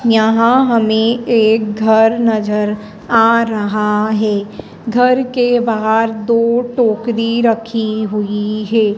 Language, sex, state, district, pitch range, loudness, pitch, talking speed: Hindi, female, Madhya Pradesh, Dhar, 215-230 Hz, -14 LUFS, 225 Hz, 105 wpm